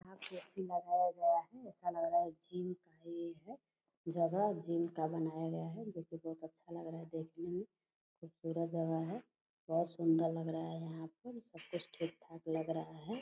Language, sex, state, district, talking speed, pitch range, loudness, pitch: Hindi, female, Bihar, Purnia, 210 wpm, 165-185 Hz, -40 LUFS, 170 Hz